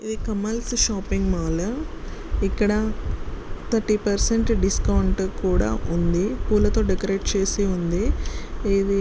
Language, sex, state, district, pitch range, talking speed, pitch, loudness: Telugu, female, Telangana, Karimnagar, 190-215 Hz, 105 wpm, 200 Hz, -23 LUFS